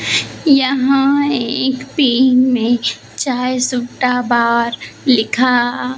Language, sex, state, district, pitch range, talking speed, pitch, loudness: Hindi, female, Maharashtra, Gondia, 245-265 Hz, 90 wpm, 255 Hz, -15 LUFS